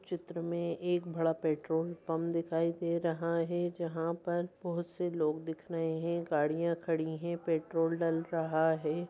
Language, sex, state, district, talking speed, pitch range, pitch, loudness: Hindi, female, Bihar, Jahanabad, 170 wpm, 160-170 Hz, 170 Hz, -34 LUFS